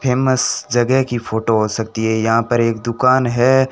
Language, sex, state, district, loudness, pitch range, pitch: Hindi, male, Rajasthan, Bikaner, -16 LUFS, 115-130 Hz, 120 Hz